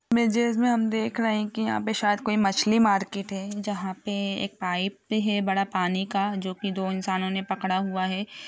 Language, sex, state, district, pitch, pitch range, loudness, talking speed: Hindi, female, Bihar, Sitamarhi, 200 Hz, 190-215 Hz, -26 LUFS, 210 wpm